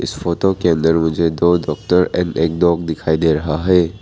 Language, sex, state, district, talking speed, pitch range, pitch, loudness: Hindi, male, Arunachal Pradesh, Papum Pare, 195 wpm, 80-90 Hz, 85 Hz, -16 LUFS